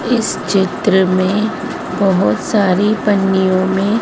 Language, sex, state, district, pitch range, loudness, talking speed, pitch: Hindi, female, Madhya Pradesh, Dhar, 190-210 Hz, -15 LUFS, 105 wpm, 195 Hz